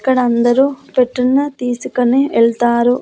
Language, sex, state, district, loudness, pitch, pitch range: Telugu, female, Andhra Pradesh, Annamaya, -14 LUFS, 250 Hz, 240-265 Hz